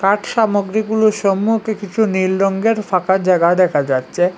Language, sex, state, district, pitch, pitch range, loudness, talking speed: Bengali, male, Assam, Hailakandi, 195 Hz, 185-215 Hz, -16 LUFS, 150 wpm